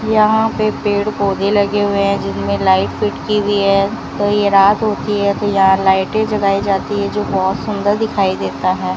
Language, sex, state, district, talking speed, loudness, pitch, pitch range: Hindi, female, Rajasthan, Bikaner, 200 wpm, -15 LUFS, 205 Hz, 195-210 Hz